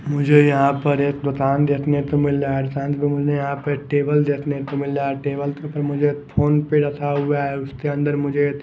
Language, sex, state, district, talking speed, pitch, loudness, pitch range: Hindi, male, Maharashtra, Mumbai Suburban, 220 wpm, 145 Hz, -20 LUFS, 140-145 Hz